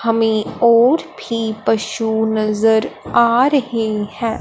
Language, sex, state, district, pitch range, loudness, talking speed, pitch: Hindi, male, Punjab, Fazilka, 220-235 Hz, -16 LUFS, 110 wpm, 225 Hz